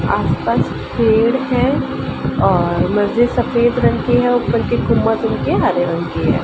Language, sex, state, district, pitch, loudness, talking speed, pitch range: Hindi, female, Uttar Pradesh, Ghazipur, 235 Hz, -16 LUFS, 165 wpm, 205-245 Hz